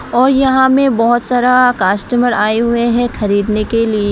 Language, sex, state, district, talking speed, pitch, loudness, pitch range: Hindi, female, Tripura, West Tripura, 175 wpm, 235 Hz, -12 LUFS, 215-250 Hz